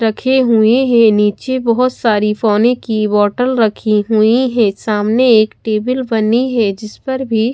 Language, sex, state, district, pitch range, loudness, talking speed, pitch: Hindi, female, Odisha, Khordha, 215-245 Hz, -13 LUFS, 160 wpm, 225 Hz